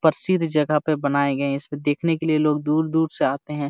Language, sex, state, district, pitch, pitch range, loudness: Hindi, male, Jharkhand, Jamtara, 150 Hz, 145-160 Hz, -22 LUFS